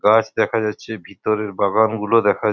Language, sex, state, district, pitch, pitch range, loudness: Bengali, male, West Bengal, Purulia, 110 Hz, 105-110 Hz, -19 LUFS